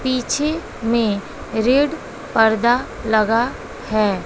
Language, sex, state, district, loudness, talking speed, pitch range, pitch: Hindi, female, Bihar, West Champaran, -19 LUFS, 85 wpm, 220-260 Hz, 230 Hz